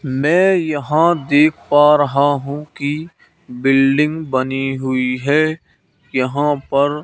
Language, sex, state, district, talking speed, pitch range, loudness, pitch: Hindi, male, Madhya Pradesh, Katni, 110 wpm, 135-155 Hz, -16 LUFS, 145 Hz